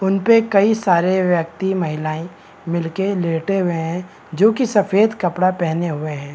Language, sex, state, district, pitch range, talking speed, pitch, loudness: Hindi, male, Bihar, Madhepura, 165-195 Hz, 180 wpm, 180 Hz, -18 LUFS